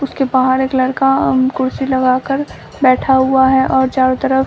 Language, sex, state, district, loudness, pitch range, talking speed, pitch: Hindi, female, Bihar, Samastipur, -14 LUFS, 260-270 Hz, 185 wpm, 265 Hz